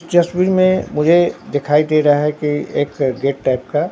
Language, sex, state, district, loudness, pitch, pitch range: Hindi, male, Bihar, Katihar, -16 LUFS, 150 Hz, 145-175 Hz